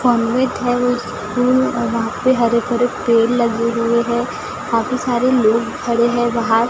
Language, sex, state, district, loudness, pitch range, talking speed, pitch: Hindi, female, Maharashtra, Gondia, -17 LUFS, 235-250 Hz, 170 wpm, 240 Hz